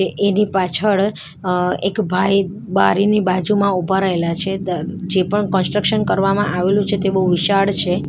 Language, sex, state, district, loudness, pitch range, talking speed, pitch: Gujarati, female, Gujarat, Valsad, -17 LUFS, 180-200 Hz, 155 wpm, 195 Hz